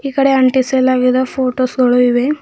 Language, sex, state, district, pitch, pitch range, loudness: Kannada, female, Karnataka, Bidar, 255 Hz, 250-265 Hz, -13 LUFS